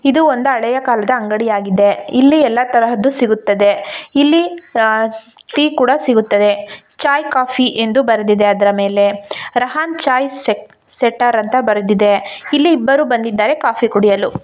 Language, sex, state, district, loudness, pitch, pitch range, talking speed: Kannada, female, Karnataka, Shimoga, -14 LUFS, 235 Hz, 210-270 Hz, 125 wpm